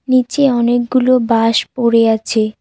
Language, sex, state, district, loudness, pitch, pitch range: Bengali, female, West Bengal, Cooch Behar, -14 LUFS, 240 Hz, 225-255 Hz